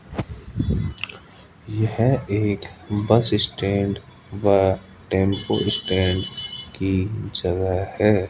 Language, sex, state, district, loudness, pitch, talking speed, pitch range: Hindi, male, Rajasthan, Jaipur, -22 LUFS, 100 Hz, 70 wpm, 95-105 Hz